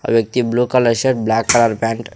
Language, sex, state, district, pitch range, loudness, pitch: Telugu, male, Andhra Pradesh, Sri Satya Sai, 115-125 Hz, -16 LUFS, 115 Hz